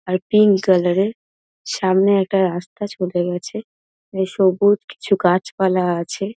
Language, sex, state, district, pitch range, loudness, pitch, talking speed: Bengali, female, West Bengal, Dakshin Dinajpur, 180-200 Hz, -18 LUFS, 190 Hz, 140 wpm